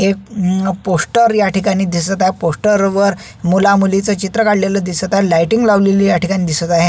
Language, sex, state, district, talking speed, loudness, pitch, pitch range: Marathi, male, Maharashtra, Solapur, 175 wpm, -14 LUFS, 195 Hz, 180-200 Hz